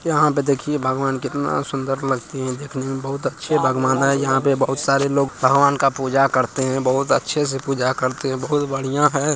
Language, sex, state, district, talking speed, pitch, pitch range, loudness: Maithili, male, Bihar, Bhagalpur, 210 wpm, 135 Hz, 130-140 Hz, -20 LUFS